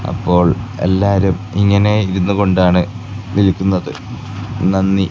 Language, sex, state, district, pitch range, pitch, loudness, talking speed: Malayalam, male, Kerala, Kasaragod, 95-105 Hz, 95 Hz, -15 LUFS, 70 wpm